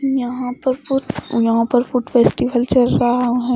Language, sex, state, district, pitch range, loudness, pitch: Hindi, female, Odisha, Khordha, 240-255 Hz, -17 LUFS, 245 Hz